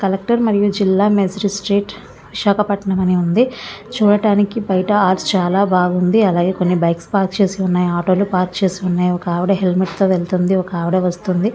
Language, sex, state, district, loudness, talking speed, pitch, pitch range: Telugu, female, Andhra Pradesh, Visakhapatnam, -16 LUFS, 160 wpm, 190 Hz, 180-205 Hz